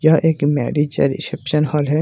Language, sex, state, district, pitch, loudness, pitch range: Hindi, male, Bihar, Jamui, 150 Hz, -18 LUFS, 145-160 Hz